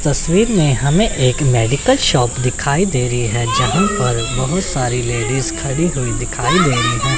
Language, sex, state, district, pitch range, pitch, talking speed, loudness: Hindi, male, Chandigarh, Chandigarh, 125-165 Hz, 130 Hz, 175 wpm, -15 LUFS